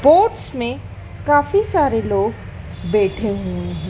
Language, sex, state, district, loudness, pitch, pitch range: Hindi, female, Madhya Pradesh, Dhar, -19 LUFS, 240 Hz, 195-295 Hz